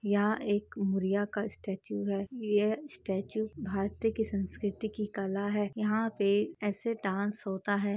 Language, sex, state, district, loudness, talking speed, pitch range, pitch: Hindi, female, Chhattisgarh, Bastar, -33 LUFS, 150 wpm, 200-215 Hz, 205 Hz